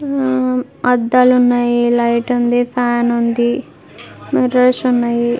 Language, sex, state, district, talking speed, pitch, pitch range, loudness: Telugu, female, Telangana, Karimnagar, 100 wpm, 245 Hz, 240-250 Hz, -14 LUFS